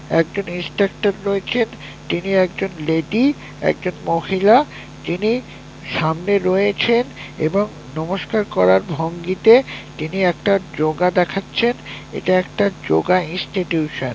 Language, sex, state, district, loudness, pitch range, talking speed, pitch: Bengali, male, West Bengal, North 24 Parganas, -19 LUFS, 165-200 Hz, 100 wpm, 185 Hz